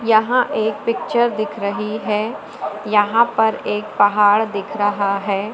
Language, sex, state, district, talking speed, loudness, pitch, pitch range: Hindi, female, Madhya Pradesh, Umaria, 140 wpm, -18 LUFS, 215 Hz, 205-225 Hz